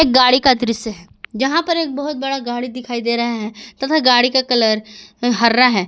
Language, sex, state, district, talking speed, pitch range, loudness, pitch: Hindi, female, Jharkhand, Garhwa, 205 wpm, 230-265 Hz, -16 LUFS, 245 Hz